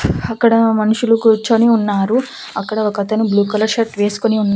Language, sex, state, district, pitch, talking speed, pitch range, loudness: Telugu, female, Andhra Pradesh, Annamaya, 220 Hz, 145 wpm, 210-230 Hz, -15 LUFS